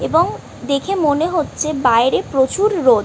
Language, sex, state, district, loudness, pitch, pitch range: Bengali, female, West Bengal, North 24 Parganas, -17 LUFS, 290 Hz, 265-340 Hz